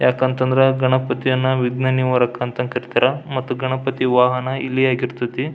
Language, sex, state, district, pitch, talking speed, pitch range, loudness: Kannada, male, Karnataka, Belgaum, 130 Hz, 120 wpm, 125-130 Hz, -19 LUFS